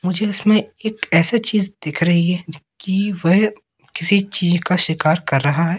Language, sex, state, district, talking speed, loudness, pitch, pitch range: Hindi, male, Madhya Pradesh, Katni, 185 wpm, -18 LUFS, 180 Hz, 165-205 Hz